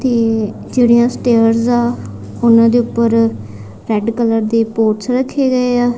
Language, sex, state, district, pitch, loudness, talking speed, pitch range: Punjabi, female, Punjab, Kapurthala, 230 Hz, -14 LUFS, 130 wpm, 220-240 Hz